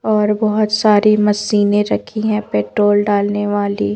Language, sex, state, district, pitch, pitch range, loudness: Hindi, female, Madhya Pradesh, Bhopal, 210 Hz, 205-215 Hz, -15 LUFS